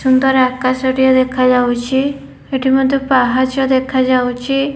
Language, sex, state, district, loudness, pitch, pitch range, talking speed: Odia, female, Odisha, Khordha, -14 LUFS, 260 Hz, 255-265 Hz, 115 wpm